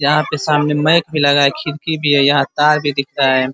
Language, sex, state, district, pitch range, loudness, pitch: Hindi, male, Uttar Pradesh, Ghazipur, 140-150 Hz, -14 LUFS, 145 Hz